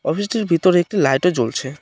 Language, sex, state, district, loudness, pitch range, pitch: Bengali, male, West Bengal, Cooch Behar, -18 LUFS, 135-190 Hz, 175 Hz